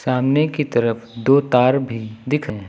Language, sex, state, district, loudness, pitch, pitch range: Hindi, male, Uttar Pradesh, Lucknow, -19 LUFS, 125 Hz, 115-140 Hz